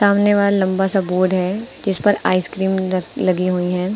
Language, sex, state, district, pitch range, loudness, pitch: Hindi, female, Uttar Pradesh, Lucknow, 185-200 Hz, -17 LUFS, 190 Hz